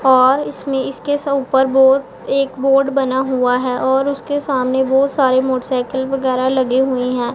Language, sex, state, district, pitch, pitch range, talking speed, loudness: Hindi, female, Punjab, Pathankot, 265 Hz, 260-275 Hz, 170 wpm, -16 LUFS